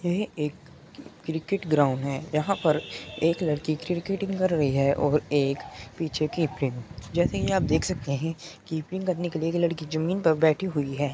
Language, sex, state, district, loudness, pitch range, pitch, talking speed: Hindi, male, Uttar Pradesh, Muzaffarnagar, -27 LUFS, 145-175 Hz, 160 Hz, 185 wpm